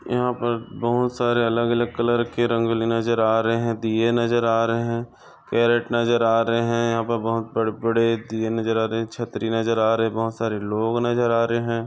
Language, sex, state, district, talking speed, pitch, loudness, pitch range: Hindi, male, Maharashtra, Chandrapur, 210 wpm, 115 Hz, -22 LUFS, 115-120 Hz